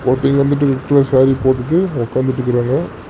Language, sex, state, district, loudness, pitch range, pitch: Tamil, male, Tamil Nadu, Namakkal, -15 LUFS, 130-140 Hz, 130 Hz